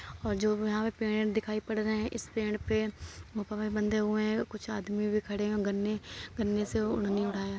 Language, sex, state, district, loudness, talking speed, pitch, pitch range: Hindi, male, Uttar Pradesh, Muzaffarnagar, -32 LUFS, 205 wpm, 215 Hz, 210-215 Hz